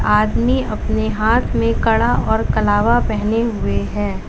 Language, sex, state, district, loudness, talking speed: Hindi, female, Uttar Pradesh, Lalitpur, -17 LUFS, 140 wpm